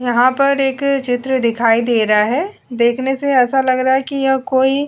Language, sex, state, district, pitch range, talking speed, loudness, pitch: Hindi, female, Goa, North and South Goa, 245-270 Hz, 220 wpm, -15 LUFS, 260 Hz